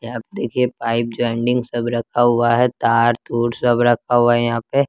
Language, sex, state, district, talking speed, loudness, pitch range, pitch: Hindi, male, Bihar, West Champaran, 210 wpm, -18 LUFS, 115-120 Hz, 120 Hz